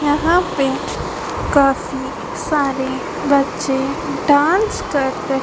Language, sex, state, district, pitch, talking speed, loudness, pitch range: Hindi, female, Madhya Pradesh, Dhar, 280 Hz, 90 wpm, -18 LUFS, 270-295 Hz